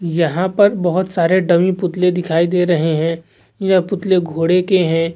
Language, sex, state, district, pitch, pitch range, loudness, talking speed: Hindi, male, Chhattisgarh, Rajnandgaon, 180 Hz, 165-185 Hz, -16 LUFS, 175 wpm